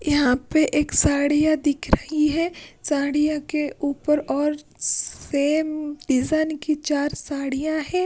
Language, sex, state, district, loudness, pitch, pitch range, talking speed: Hindi, female, Punjab, Pathankot, -22 LUFS, 300 Hz, 285-310 Hz, 125 wpm